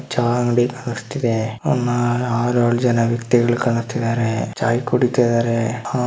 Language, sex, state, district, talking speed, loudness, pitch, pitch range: Kannada, male, Karnataka, Dharwad, 140 wpm, -19 LUFS, 120 Hz, 115-125 Hz